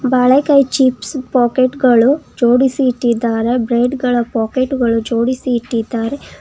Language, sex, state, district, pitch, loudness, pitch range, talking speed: Kannada, female, Karnataka, Bangalore, 250 Hz, -14 LUFS, 235-260 Hz, 110 wpm